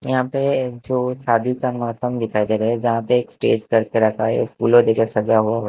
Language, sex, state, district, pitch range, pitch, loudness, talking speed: Hindi, male, Himachal Pradesh, Shimla, 110-125 Hz, 115 Hz, -19 LUFS, 230 wpm